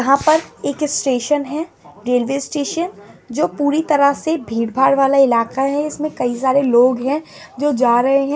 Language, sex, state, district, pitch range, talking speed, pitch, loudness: Angika, female, Bihar, Madhepura, 255-295 Hz, 170 wpm, 275 Hz, -17 LUFS